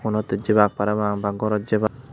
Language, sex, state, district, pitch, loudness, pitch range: Chakma, male, Tripura, West Tripura, 105 Hz, -22 LUFS, 105-110 Hz